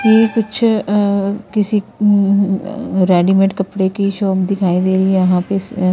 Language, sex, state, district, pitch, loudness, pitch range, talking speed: Hindi, female, Punjab, Kapurthala, 200 Hz, -15 LUFS, 190-210 Hz, 190 wpm